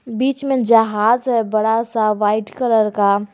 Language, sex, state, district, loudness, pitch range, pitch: Hindi, female, Jharkhand, Garhwa, -17 LUFS, 210-240 Hz, 225 Hz